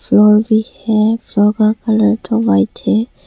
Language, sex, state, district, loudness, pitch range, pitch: Hindi, female, Arunachal Pradesh, Longding, -14 LUFS, 210-225 Hz, 220 Hz